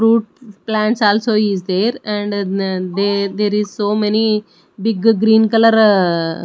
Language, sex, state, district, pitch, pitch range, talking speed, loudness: English, female, Odisha, Nuapada, 210 Hz, 200-220 Hz, 140 wpm, -15 LUFS